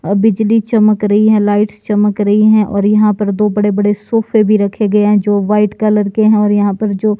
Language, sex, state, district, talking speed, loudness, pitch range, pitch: Hindi, male, Himachal Pradesh, Shimla, 240 wpm, -12 LUFS, 205-215 Hz, 210 Hz